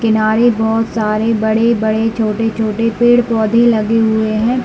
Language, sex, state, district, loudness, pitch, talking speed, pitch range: Hindi, male, Chhattisgarh, Bilaspur, -14 LUFS, 225 Hz, 130 wpm, 220-230 Hz